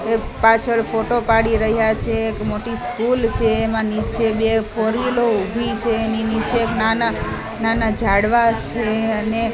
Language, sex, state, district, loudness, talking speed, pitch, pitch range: Gujarati, female, Gujarat, Gandhinagar, -18 LUFS, 155 wpm, 225 Hz, 220-230 Hz